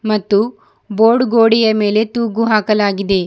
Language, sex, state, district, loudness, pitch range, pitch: Kannada, female, Karnataka, Bidar, -14 LUFS, 205-230 Hz, 220 Hz